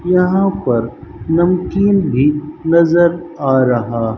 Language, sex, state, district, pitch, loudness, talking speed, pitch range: Hindi, male, Rajasthan, Bikaner, 160 Hz, -14 LUFS, 100 wpm, 125-175 Hz